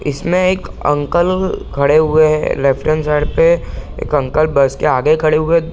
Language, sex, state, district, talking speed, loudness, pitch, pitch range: Hindi, male, Bihar, Sitamarhi, 210 wpm, -14 LUFS, 155 Hz, 145-170 Hz